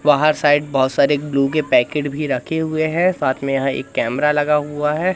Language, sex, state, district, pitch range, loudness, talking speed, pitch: Hindi, male, Madhya Pradesh, Katni, 140-155 Hz, -18 LUFS, 220 wpm, 150 Hz